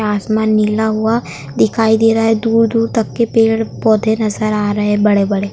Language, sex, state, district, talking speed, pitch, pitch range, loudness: Hindi, female, West Bengal, Kolkata, 185 wpm, 220 Hz, 210-225 Hz, -14 LUFS